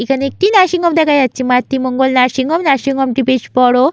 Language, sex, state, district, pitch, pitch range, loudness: Bengali, female, West Bengal, Malda, 265 Hz, 255-290 Hz, -13 LUFS